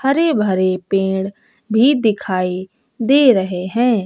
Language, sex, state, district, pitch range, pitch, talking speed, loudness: Hindi, female, Bihar, West Champaran, 185-245 Hz, 215 Hz, 120 wpm, -16 LUFS